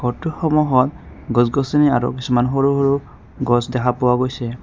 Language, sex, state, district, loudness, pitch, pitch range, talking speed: Assamese, male, Assam, Kamrup Metropolitan, -18 LUFS, 130 Hz, 125-140 Hz, 155 wpm